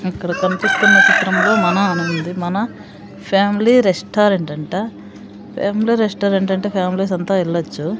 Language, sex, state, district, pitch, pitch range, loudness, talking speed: Telugu, female, Andhra Pradesh, Sri Satya Sai, 190 Hz, 175-205 Hz, -16 LUFS, 120 wpm